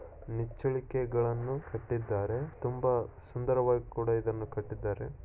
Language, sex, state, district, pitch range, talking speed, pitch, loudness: Kannada, male, Karnataka, Shimoga, 115-125 Hz, 80 wpm, 120 Hz, -33 LUFS